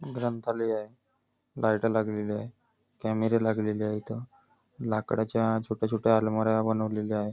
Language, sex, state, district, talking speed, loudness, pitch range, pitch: Marathi, male, Maharashtra, Nagpur, 125 wpm, -29 LUFS, 110-115 Hz, 110 Hz